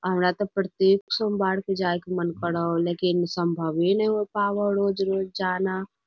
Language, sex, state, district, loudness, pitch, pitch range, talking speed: Magahi, female, Bihar, Lakhisarai, -25 LUFS, 190 Hz, 175-200 Hz, 180 wpm